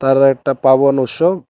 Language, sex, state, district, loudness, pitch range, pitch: Bengali, male, Tripura, West Tripura, -14 LUFS, 135-140 Hz, 135 Hz